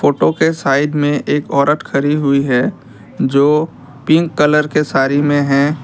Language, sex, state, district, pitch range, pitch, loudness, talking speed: Hindi, male, Assam, Kamrup Metropolitan, 140-150 Hz, 145 Hz, -14 LUFS, 165 wpm